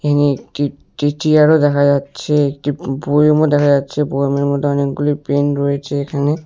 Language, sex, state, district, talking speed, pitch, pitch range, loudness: Bengali, male, West Bengal, Alipurduar, 140 wpm, 145 Hz, 140-145 Hz, -16 LUFS